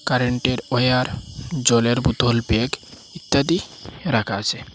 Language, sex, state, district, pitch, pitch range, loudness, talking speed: Bengali, male, Assam, Hailakandi, 125 Hz, 115-130 Hz, -21 LUFS, 100 wpm